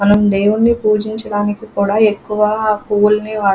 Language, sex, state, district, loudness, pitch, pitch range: Telugu, female, Andhra Pradesh, Krishna, -15 LUFS, 210 Hz, 205-215 Hz